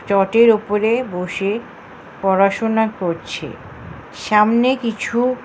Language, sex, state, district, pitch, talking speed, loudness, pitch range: Bengali, female, West Bengal, Jhargram, 215 Hz, 75 wpm, -17 LUFS, 195-235 Hz